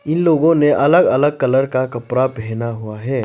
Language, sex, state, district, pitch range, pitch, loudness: Hindi, male, Arunachal Pradesh, Lower Dibang Valley, 120-145 Hz, 130 Hz, -16 LUFS